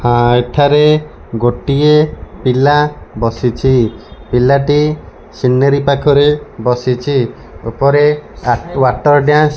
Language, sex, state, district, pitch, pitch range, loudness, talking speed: Odia, male, Odisha, Malkangiri, 140 Hz, 120-150 Hz, -12 LUFS, 90 wpm